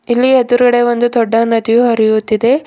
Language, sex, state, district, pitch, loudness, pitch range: Kannada, female, Karnataka, Bidar, 240 Hz, -12 LUFS, 225-245 Hz